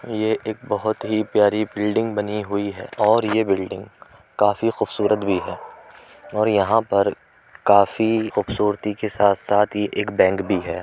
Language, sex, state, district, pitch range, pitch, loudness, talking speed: Hindi, male, Uttar Pradesh, Jyotiba Phule Nagar, 100-110 Hz, 105 Hz, -21 LUFS, 150 wpm